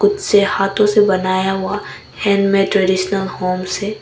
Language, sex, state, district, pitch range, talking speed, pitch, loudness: Hindi, female, Arunachal Pradesh, Papum Pare, 190-205 Hz, 135 wpm, 195 Hz, -16 LUFS